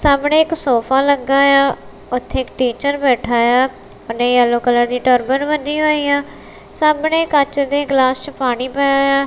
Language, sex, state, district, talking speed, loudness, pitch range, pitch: Punjabi, female, Punjab, Kapurthala, 170 wpm, -15 LUFS, 250-285 Hz, 275 Hz